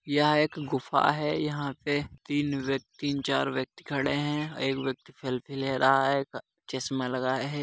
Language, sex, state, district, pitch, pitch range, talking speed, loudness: Hindi, male, Uttar Pradesh, Muzaffarnagar, 140 Hz, 135-145 Hz, 175 wpm, -29 LUFS